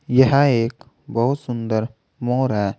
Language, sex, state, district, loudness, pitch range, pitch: Hindi, male, Uttar Pradesh, Saharanpur, -20 LUFS, 115-135 Hz, 120 Hz